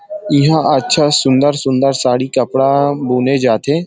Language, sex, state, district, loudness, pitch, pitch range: Chhattisgarhi, male, Chhattisgarh, Rajnandgaon, -13 LUFS, 140 Hz, 130-150 Hz